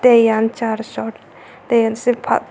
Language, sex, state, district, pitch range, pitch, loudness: Chakma, female, Tripura, Unakoti, 225-245 Hz, 230 Hz, -17 LUFS